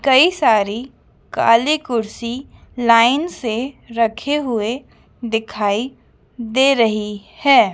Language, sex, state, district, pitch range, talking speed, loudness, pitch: Hindi, female, Madhya Pradesh, Dhar, 225-270 Hz, 95 wpm, -17 LUFS, 235 Hz